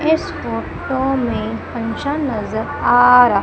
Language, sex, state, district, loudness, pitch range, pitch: Hindi, female, Madhya Pradesh, Umaria, -17 LUFS, 240-285 Hz, 250 Hz